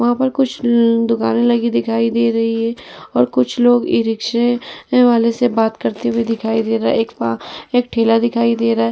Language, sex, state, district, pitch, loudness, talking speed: Hindi, female, Uttar Pradesh, Muzaffarnagar, 230 Hz, -16 LUFS, 200 wpm